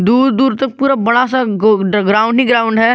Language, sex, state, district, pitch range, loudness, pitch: Hindi, male, Jharkhand, Garhwa, 215-260 Hz, -12 LUFS, 235 Hz